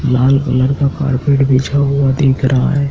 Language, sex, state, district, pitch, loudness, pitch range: Hindi, male, Madhya Pradesh, Dhar, 135 Hz, -13 LUFS, 130-140 Hz